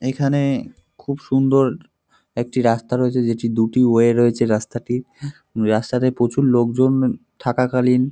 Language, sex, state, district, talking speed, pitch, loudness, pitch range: Bengali, male, West Bengal, North 24 Parganas, 120 wpm, 125 Hz, -19 LUFS, 120-130 Hz